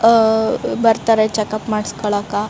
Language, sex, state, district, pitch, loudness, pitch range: Kannada, female, Karnataka, Raichur, 220 Hz, -17 LUFS, 210-225 Hz